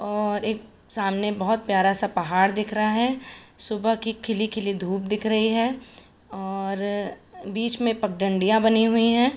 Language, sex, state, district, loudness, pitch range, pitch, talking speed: Hindi, female, Uttar Pradesh, Budaun, -24 LUFS, 195-225 Hz, 215 Hz, 155 wpm